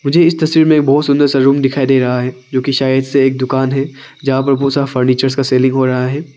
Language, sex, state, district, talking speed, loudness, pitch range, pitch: Hindi, male, Arunachal Pradesh, Papum Pare, 285 wpm, -13 LUFS, 130-140 Hz, 135 Hz